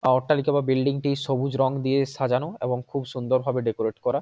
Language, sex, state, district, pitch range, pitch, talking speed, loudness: Bengali, male, West Bengal, Jhargram, 125-140 Hz, 135 Hz, 200 wpm, -25 LUFS